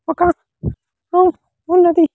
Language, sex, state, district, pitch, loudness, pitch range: Telugu, male, Andhra Pradesh, Sri Satya Sai, 345 Hz, -15 LUFS, 330-355 Hz